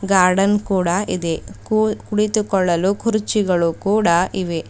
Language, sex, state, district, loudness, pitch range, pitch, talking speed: Kannada, female, Karnataka, Bidar, -18 LUFS, 180-210 Hz, 195 Hz, 115 wpm